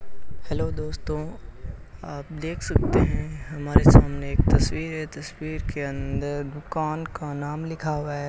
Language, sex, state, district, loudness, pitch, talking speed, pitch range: Hindi, male, Rajasthan, Bikaner, -25 LUFS, 145 Hz, 145 wpm, 140-155 Hz